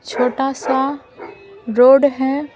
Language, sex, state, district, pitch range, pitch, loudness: Hindi, female, Bihar, Patna, 265-290 Hz, 270 Hz, -16 LUFS